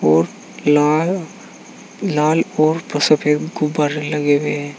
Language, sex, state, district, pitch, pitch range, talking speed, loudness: Hindi, male, Uttar Pradesh, Saharanpur, 150 Hz, 145-160 Hz, 115 wpm, -17 LUFS